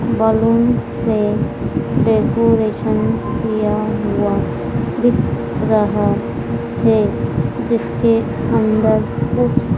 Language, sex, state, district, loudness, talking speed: Hindi, female, Madhya Pradesh, Dhar, -17 LUFS, 65 wpm